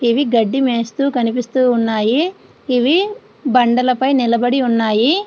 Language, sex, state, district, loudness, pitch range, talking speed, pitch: Telugu, female, Andhra Pradesh, Srikakulam, -16 LUFS, 235-270 Hz, 90 wpm, 250 Hz